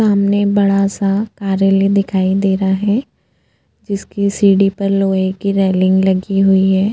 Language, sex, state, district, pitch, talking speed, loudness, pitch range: Hindi, female, Goa, North and South Goa, 195 Hz, 140 wpm, -14 LUFS, 190-200 Hz